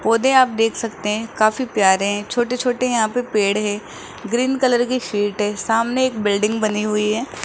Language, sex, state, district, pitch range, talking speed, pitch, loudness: Hindi, female, Rajasthan, Jaipur, 210-245 Hz, 195 wpm, 225 Hz, -19 LUFS